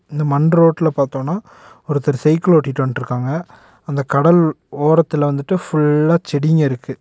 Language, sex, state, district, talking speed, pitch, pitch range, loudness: Tamil, male, Tamil Nadu, Nilgiris, 130 wpm, 150 Hz, 140-165 Hz, -16 LUFS